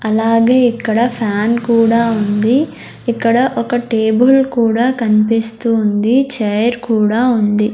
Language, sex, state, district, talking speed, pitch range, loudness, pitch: Telugu, female, Andhra Pradesh, Sri Satya Sai, 110 wpm, 220-245 Hz, -14 LUFS, 230 Hz